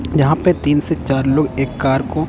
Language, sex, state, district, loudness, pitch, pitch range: Hindi, male, Punjab, Kapurthala, -16 LUFS, 145 Hz, 135-155 Hz